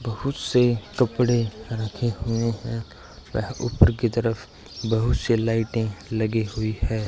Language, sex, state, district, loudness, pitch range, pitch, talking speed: Hindi, male, Rajasthan, Bikaner, -24 LUFS, 110-120 Hz, 115 Hz, 135 wpm